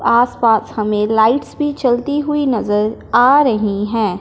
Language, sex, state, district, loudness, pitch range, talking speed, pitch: Hindi, male, Punjab, Fazilka, -15 LUFS, 215-270 Hz, 155 wpm, 230 Hz